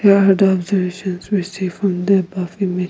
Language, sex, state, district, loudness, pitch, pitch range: English, female, Nagaland, Kohima, -18 LUFS, 190 Hz, 180-195 Hz